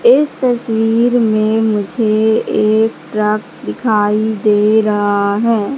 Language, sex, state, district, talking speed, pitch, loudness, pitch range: Hindi, female, Madhya Pradesh, Katni, 105 wpm, 220 Hz, -14 LUFS, 210-225 Hz